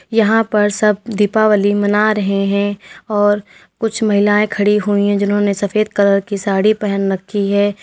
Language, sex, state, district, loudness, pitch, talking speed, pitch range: Hindi, female, Uttar Pradesh, Lalitpur, -15 LUFS, 205 Hz, 160 wpm, 200-210 Hz